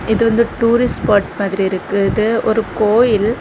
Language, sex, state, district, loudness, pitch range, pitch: Tamil, female, Tamil Nadu, Kanyakumari, -15 LUFS, 200-230 Hz, 220 Hz